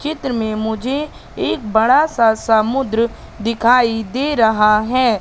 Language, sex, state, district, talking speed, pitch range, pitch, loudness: Hindi, female, Madhya Pradesh, Katni, 125 wpm, 220-255 Hz, 230 Hz, -16 LUFS